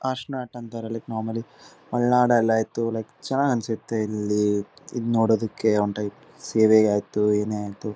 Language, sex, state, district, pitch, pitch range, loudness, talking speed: Kannada, male, Karnataka, Shimoga, 115 Hz, 105-120 Hz, -24 LUFS, 145 wpm